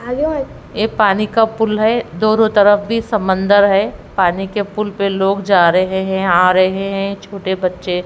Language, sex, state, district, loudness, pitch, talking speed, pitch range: Hindi, female, Haryana, Rohtak, -15 LUFS, 200 Hz, 170 wpm, 190-215 Hz